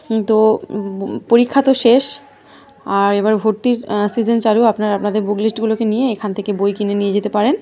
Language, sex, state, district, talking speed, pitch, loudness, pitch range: Bengali, female, West Bengal, North 24 Parganas, 190 wpm, 220 Hz, -16 LUFS, 205-235 Hz